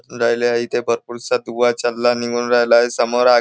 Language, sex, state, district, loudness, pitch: Marathi, male, Maharashtra, Nagpur, -17 LUFS, 120 Hz